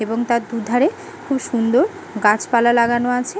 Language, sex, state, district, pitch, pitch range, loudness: Bengali, female, West Bengal, Malda, 240 Hz, 230-265 Hz, -18 LUFS